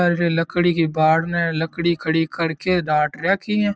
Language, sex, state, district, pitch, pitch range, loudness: Marwari, male, Rajasthan, Churu, 165 Hz, 160-175 Hz, -20 LUFS